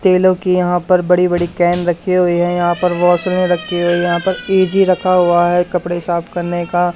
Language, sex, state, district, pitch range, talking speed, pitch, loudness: Hindi, male, Haryana, Charkhi Dadri, 175-185 Hz, 215 wpm, 175 Hz, -14 LUFS